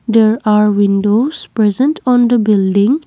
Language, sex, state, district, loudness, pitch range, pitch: English, female, Assam, Kamrup Metropolitan, -12 LUFS, 205-245 Hz, 220 Hz